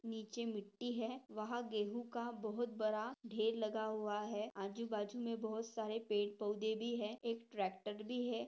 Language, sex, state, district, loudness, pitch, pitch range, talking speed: Hindi, female, Maharashtra, Pune, -42 LUFS, 220 Hz, 210-235 Hz, 175 wpm